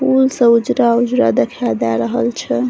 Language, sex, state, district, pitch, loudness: Maithili, female, Bihar, Saharsa, 235 Hz, -15 LUFS